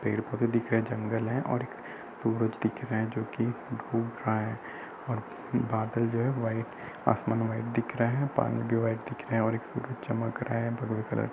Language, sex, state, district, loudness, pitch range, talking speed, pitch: Hindi, male, Uttar Pradesh, Budaun, -31 LUFS, 110-120 Hz, 205 wpm, 115 Hz